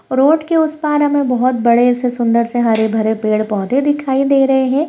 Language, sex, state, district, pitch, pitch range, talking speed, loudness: Hindi, female, Uttar Pradesh, Hamirpur, 255 Hz, 235-285 Hz, 210 wpm, -14 LUFS